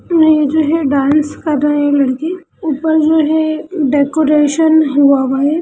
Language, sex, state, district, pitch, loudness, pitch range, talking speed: Hindi, female, Bihar, Lakhisarai, 305 Hz, -13 LUFS, 285-315 Hz, 160 wpm